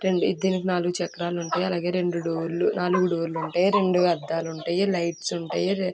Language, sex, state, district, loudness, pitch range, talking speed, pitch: Telugu, female, Andhra Pradesh, Guntur, -25 LUFS, 170-185 Hz, 150 wpm, 175 Hz